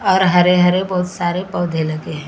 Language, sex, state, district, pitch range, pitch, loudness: Hindi, female, Maharashtra, Gondia, 165-185 Hz, 180 Hz, -16 LUFS